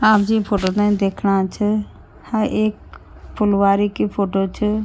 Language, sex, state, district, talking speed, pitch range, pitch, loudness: Garhwali, female, Uttarakhand, Tehri Garhwal, 150 wpm, 200-215 Hz, 205 Hz, -19 LUFS